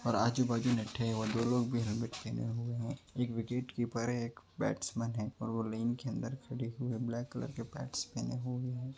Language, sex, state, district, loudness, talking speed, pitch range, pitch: Hindi, male, Uttar Pradesh, Ghazipur, -37 LUFS, 225 wpm, 115-125 Hz, 120 Hz